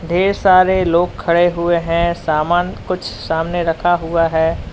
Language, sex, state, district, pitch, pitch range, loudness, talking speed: Hindi, male, Uttar Pradesh, Lalitpur, 170 Hz, 165-175 Hz, -16 LUFS, 150 wpm